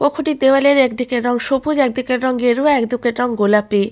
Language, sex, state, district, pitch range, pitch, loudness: Bengali, female, West Bengal, Malda, 240-275 Hz, 250 Hz, -16 LUFS